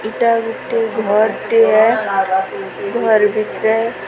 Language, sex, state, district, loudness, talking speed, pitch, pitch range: Odia, female, Odisha, Sambalpur, -15 LUFS, 145 wpm, 220 Hz, 215-230 Hz